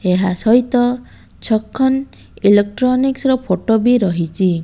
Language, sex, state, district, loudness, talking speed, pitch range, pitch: Odia, female, Odisha, Malkangiri, -15 LUFS, 105 wpm, 190-255 Hz, 225 Hz